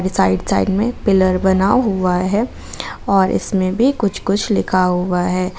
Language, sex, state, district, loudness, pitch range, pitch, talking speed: Hindi, female, Jharkhand, Garhwa, -16 LUFS, 185-205 Hz, 190 Hz, 160 wpm